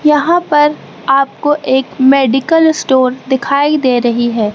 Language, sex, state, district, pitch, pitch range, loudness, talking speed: Hindi, female, Madhya Pradesh, Katni, 270 Hz, 260-295 Hz, -12 LUFS, 130 wpm